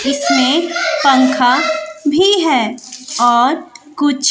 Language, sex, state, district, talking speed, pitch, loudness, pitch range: Hindi, female, Bihar, West Champaran, 95 wpm, 280 Hz, -13 LUFS, 255-320 Hz